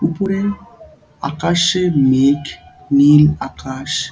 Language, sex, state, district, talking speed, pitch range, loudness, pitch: Bengali, male, West Bengal, Dakshin Dinajpur, 85 wpm, 140-180 Hz, -15 LUFS, 150 Hz